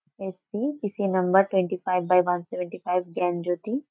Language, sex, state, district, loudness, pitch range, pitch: Bengali, female, West Bengal, Jalpaiguri, -25 LUFS, 180-195 Hz, 185 Hz